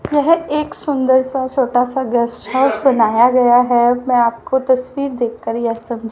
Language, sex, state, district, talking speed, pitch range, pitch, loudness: Hindi, female, Haryana, Rohtak, 155 wpm, 235-265 Hz, 250 Hz, -15 LUFS